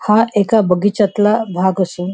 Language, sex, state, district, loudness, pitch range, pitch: Marathi, female, Maharashtra, Nagpur, -15 LUFS, 185-215 Hz, 205 Hz